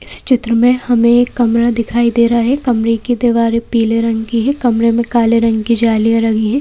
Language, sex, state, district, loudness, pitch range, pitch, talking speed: Hindi, female, Madhya Pradesh, Bhopal, -13 LUFS, 230-240 Hz, 230 Hz, 225 wpm